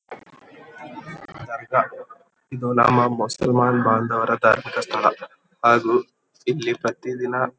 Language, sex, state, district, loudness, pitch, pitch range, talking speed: Kannada, male, Karnataka, Dharwad, -20 LUFS, 125 Hz, 120-130 Hz, 80 wpm